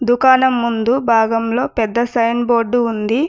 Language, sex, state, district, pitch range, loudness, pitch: Telugu, female, Telangana, Mahabubabad, 230-250 Hz, -15 LUFS, 235 Hz